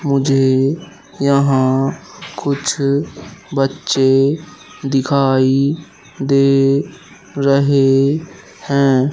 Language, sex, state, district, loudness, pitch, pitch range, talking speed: Hindi, male, Madhya Pradesh, Katni, -15 LUFS, 140 Hz, 135-140 Hz, 55 wpm